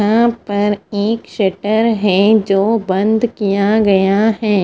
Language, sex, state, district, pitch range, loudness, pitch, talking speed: Hindi, female, Punjab, Fazilka, 200-220 Hz, -14 LUFS, 210 Hz, 130 wpm